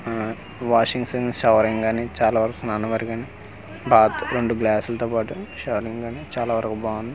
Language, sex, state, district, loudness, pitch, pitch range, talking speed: Telugu, male, Andhra Pradesh, Manyam, -22 LUFS, 115 Hz, 110-115 Hz, 125 wpm